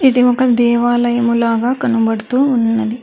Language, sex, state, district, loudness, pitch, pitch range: Telugu, female, Telangana, Hyderabad, -14 LUFS, 240 Hz, 230-250 Hz